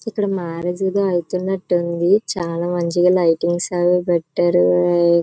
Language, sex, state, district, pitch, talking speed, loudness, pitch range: Telugu, female, Andhra Pradesh, Chittoor, 175 Hz, 105 wpm, -18 LUFS, 170-185 Hz